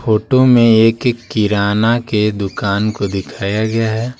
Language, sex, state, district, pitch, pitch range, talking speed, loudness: Hindi, male, Bihar, Patna, 110 Hz, 100-115 Hz, 145 wpm, -14 LUFS